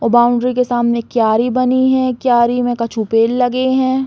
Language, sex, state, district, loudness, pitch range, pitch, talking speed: Bundeli, female, Uttar Pradesh, Hamirpur, -14 LUFS, 235-255 Hz, 245 Hz, 190 wpm